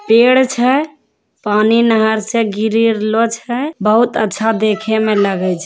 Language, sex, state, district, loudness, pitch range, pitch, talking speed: Hindi, female, Bihar, Begusarai, -14 LUFS, 215-235 Hz, 225 Hz, 125 wpm